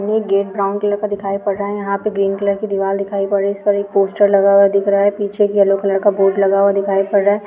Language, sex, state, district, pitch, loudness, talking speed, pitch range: Hindi, female, Bihar, Araria, 200 Hz, -16 LUFS, 330 wpm, 195-205 Hz